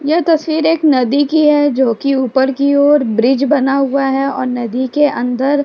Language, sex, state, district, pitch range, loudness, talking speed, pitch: Hindi, female, Uttar Pradesh, Jyotiba Phule Nagar, 260-295 Hz, -13 LUFS, 210 wpm, 275 Hz